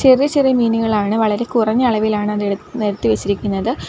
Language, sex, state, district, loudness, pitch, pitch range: Malayalam, female, Kerala, Kollam, -17 LUFS, 220 Hz, 210-240 Hz